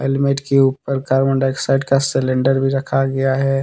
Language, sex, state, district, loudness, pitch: Hindi, male, Jharkhand, Deoghar, -17 LUFS, 135 Hz